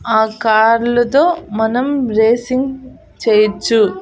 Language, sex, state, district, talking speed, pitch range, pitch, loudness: Telugu, female, Andhra Pradesh, Annamaya, 105 wpm, 220-260 Hz, 230 Hz, -14 LUFS